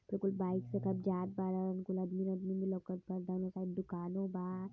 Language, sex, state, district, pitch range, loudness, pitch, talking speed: Hindi, male, Uttar Pradesh, Varanasi, 185-190 Hz, -39 LUFS, 185 Hz, 205 wpm